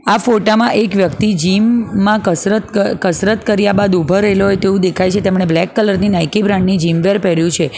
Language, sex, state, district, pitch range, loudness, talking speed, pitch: Gujarati, female, Gujarat, Valsad, 185-210 Hz, -13 LUFS, 225 wpm, 200 Hz